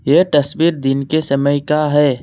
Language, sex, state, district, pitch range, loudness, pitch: Hindi, male, Assam, Kamrup Metropolitan, 140-150 Hz, -15 LUFS, 145 Hz